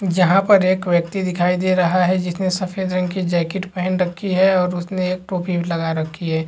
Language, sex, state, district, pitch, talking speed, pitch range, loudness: Hindi, male, Chhattisgarh, Rajnandgaon, 185 Hz, 195 wpm, 175-185 Hz, -19 LUFS